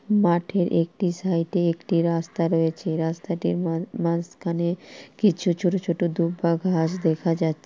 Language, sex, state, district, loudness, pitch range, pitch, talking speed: Bengali, female, West Bengal, Purulia, -24 LUFS, 165-180 Hz, 170 Hz, 115 wpm